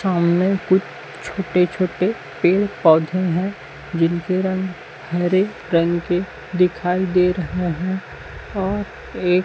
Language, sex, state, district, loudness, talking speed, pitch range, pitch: Hindi, male, Chhattisgarh, Raipur, -20 LUFS, 120 wpm, 175-190 Hz, 180 Hz